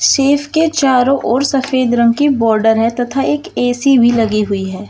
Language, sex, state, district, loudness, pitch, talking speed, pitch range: Hindi, female, Uttar Pradesh, Shamli, -13 LUFS, 245 Hz, 195 wpm, 225-275 Hz